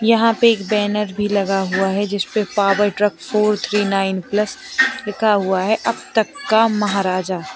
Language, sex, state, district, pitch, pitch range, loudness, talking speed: Hindi, female, Uttar Pradesh, Lalitpur, 210 Hz, 195-220 Hz, -18 LUFS, 180 wpm